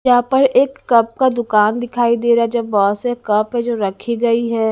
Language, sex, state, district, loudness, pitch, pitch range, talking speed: Hindi, female, Haryana, Jhajjar, -16 LUFS, 235 Hz, 225-245 Hz, 240 wpm